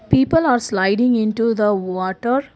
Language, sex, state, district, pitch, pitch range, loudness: English, female, Karnataka, Bangalore, 225 Hz, 195-245 Hz, -18 LUFS